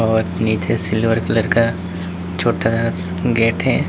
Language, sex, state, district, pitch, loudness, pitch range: Hindi, male, Uttar Pradesh, Lalitpur, 90 Hz, -18 LUFS, 90-110 Hz